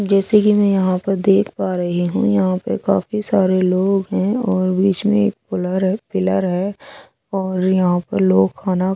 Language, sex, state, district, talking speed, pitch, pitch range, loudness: Hindi, female, Odisha, Sambalpur, 180 wpm, 190 Hz, 185-200 Hz, -17 LUFS